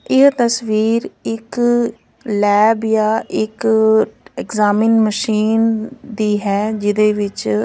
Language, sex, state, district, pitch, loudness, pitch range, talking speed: Punjabi, female, Punjab, Fazilka, 220 Hz, -16 LUFS, 210-225 Hz, 95 wpm